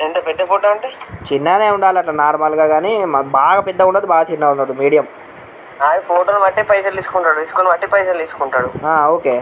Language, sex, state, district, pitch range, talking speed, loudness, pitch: Telugu, male, Andhra Pradesh, Anantapur, 150-195 Hz, 185 wpm, -14 LUFS, 170 Hz